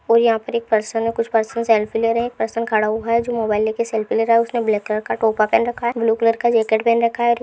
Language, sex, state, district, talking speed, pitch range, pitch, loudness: Hindi, female, Uttar Pradesh, Deoria, 320 wpm, 220-235 Hz, 230 Hz, -19 LUFS